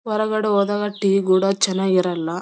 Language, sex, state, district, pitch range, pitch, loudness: Kannada, female, Karnataka, Bellary, 185-205 Hz, 195 Hz, -19 LUFS